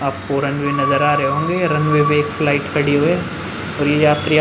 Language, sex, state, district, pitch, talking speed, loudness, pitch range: Hindi, male, Bihar, Vaishali, 145 Hz, 245 wpm, -17 LUFS, 145-155 Hz